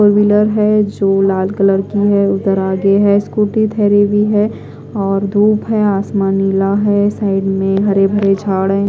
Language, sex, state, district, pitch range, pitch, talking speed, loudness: Hindi, female, Odisha, Khordha, 195-210 Hz, 200 Hz, 180 wpm, -13 LUFS